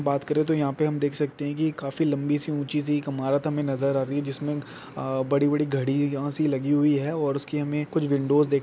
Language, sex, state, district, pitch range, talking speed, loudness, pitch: Hindi, male, Jharkhand, Jamtara, 140-150 Hz, 255 wpm, -26 LUFS, 145 Hz